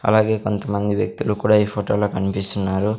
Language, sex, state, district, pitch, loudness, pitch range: Telugu, male, Andhra Pradesh, Sri Satya Sai, 105 Hz, -20 LUFS, 100-105 Hz